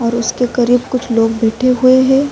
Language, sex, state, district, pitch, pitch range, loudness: Urdu, female, Uttar Pradesh, Budaun, 245 Hz, 235-255 Hz, -13 LUFS